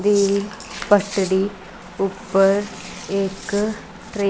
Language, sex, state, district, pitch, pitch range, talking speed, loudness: Punjabi, female, Punjab, Kapurthala, 200 Hz, 195-205 Hz, 85 wpm, -21 LUFS